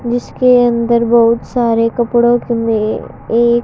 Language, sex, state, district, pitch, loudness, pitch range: Hindi, female, Haryana, Jhajjar, 235 Hz, -13 LUFS, 230-240 Hz